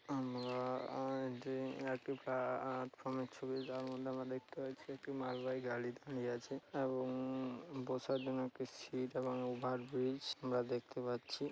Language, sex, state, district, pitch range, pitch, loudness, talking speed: Bengali, male, West Bengal, Paschim Medinipur, 125-130 Hz, 130 Hz, -43 LUFS, 145 wpm